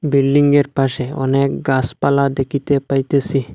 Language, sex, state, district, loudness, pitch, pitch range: Bengali, male, Assam, Hailakandi, -17 LUFS, 135 Hz, 135-140 Hz